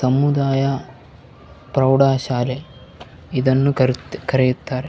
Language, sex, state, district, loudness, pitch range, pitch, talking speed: Kannada, male, Karnataka, Bellary, -19 LUFS, 130-135 Hz, 130 Hz, 85 wpm